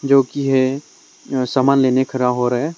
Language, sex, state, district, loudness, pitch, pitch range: Hindi, male, Arunachal Pradesh, Longding, -17 LUFS, 130 Hz, 130-140 Hz